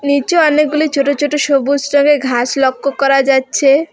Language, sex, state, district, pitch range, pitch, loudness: Bengali, female, West Bengal, Alipurduar, 275-295 Hz, 280 Hz, -13 LUFS